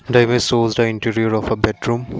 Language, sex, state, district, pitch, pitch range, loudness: English, male, Assam, Kamrup Metropolitan, 115 Hz, 110-120 Hz, -18 LUFS